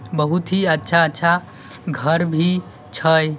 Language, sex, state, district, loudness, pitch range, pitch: Hindi, male, Bihar, Samastipur, -18 LUFS, 150-170 Hz, 160 Hz